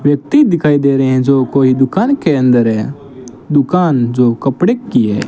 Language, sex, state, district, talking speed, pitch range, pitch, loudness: Hindi, male, Rajasthan, Bikaner, 180 wpm, 130-155 Hz, 140 Hz, -12 LUFS